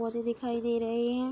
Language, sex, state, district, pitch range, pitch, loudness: Hindi, female, Bihar, Araria, 235-240 Hz, 235 Hz, -31 LUFS